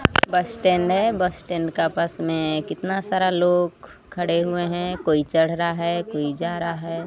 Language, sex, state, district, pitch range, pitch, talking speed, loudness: Hindi, female, Odisha, Sambalpur, 165-180 Hz, 170 Hz, 185 wpm, -22 LUFS